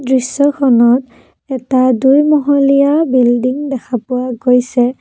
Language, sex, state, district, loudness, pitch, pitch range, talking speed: Assamese, female, Assam, Kamrup Metropolitan, -12 LUFS, 255 Hz, 250-280 Hz, 95 wpm